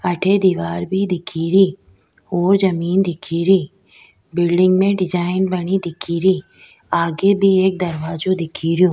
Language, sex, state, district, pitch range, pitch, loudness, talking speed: Rajasthani, female, Rajasthan, Nagaur, 170-190 Hz, 180 Hz, -18 LUFS, 140 wpm